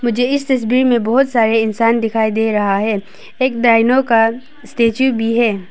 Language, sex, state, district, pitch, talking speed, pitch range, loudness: Hindi, female, Arunachal Pradesh, Papum Pare, 230 Hz, 180 wpm, 220-250 Hz, -15 LUFS